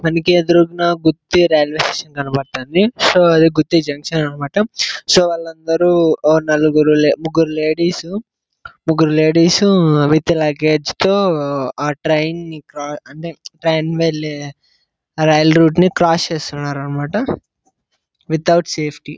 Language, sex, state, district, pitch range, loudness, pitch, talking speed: Telugu, male, Andhra Pradesh, Anantapur, 150-170 Hz, -15 LUFS, 160 Hz, 120 wpm